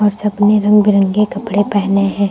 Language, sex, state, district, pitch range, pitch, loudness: Hindi, female, Uttar Pradesh, Lucknow, 200-210 Hz, 205 Hz, -13 LUFS